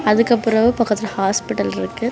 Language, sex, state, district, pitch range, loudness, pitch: Tamil, female, Tamil Nadu, Kanyakumari, 195-235 Hz, -18 LUFS, 220 Hz